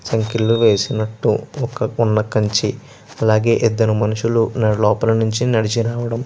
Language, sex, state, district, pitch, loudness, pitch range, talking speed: Telugu, male, Andhra Pradesh, Chittoor, 115 Hz, -17 LUFS, 110-115 Hz, 115 wpm